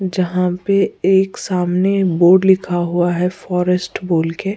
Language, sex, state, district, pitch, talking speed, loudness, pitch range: Hindi, female, Goa, North and South Goa, 180 Hz, 145 wpm, -16 LUFS, 175-190 Hz